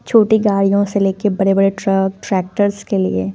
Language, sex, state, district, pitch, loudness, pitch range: Hindi, female, Punjab, Fazilka, 195 Hz, -16 LUFS, 190-205 Hz